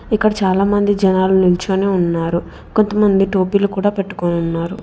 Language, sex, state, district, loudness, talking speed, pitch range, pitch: Telugu, female, Telangana, Hyderabad, -16 LUFS, 110 wpm, 180-205 Hz, 195 Hz